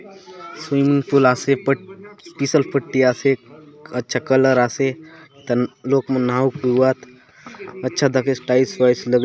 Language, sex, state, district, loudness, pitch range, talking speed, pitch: Halbi, male, Chhattisgarh, Bastar, -19 LUFS, 125-140 Hz, 125 wpm, 135 Hz